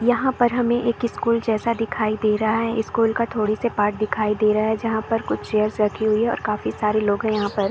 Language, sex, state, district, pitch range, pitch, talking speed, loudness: Hindi, female, Bihar, East Champaran, 215-230 Hz, 220 Hz, 255 wpm, -21 LUFS